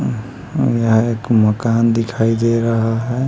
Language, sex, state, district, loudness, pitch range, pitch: Hindi, male, Bihar, Patna, -16 LUFS, 115-120 Hz, 115 Hz